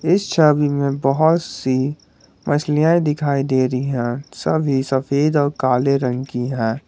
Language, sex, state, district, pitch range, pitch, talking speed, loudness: Hindi, male, Jharkhand, Garhwa, 130-150 Hz, 140 Hz, 150 wpm, -18 LUFS